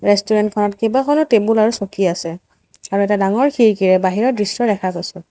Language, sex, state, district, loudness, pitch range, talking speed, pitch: Assamese, female, Assam, Sonitpur, -16 LUFS, 190-225 Hz, 170 wpm, 205 Hz